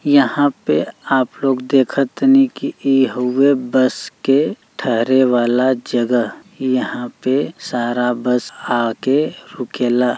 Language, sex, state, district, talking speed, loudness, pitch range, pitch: Bhojpuri, male, Uttar Pradesh, Deoria, 120 wpm, -17 LUFS, 125-135 Hz, 130 Hz